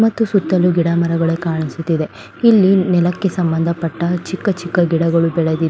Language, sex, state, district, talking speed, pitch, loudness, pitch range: Kannada, female, Karnataka, Belgaum, 125 wpm, 170 Hz, -16 LUFS, 165-185 Hz